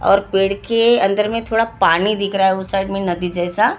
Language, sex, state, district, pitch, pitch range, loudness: Hindi, female, Maharashtra, Gondia, 195 Hz, 190-225 Hz, -17 LUFS